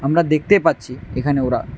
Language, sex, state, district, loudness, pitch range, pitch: Bengali, male, Tripura, West Tripura, -18 LUFS, 130-155 Hz, 140 Hz